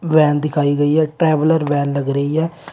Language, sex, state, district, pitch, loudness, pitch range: Hindi, male, Uttar Pradesh, Shamli, 150 Hz, -17 LUFS, 145-160 Hz